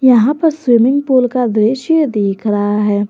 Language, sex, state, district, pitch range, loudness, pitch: Hindi, female, Jharkhand, Garhwa, 210-270 Hz, -13 LUFS, 245 Hz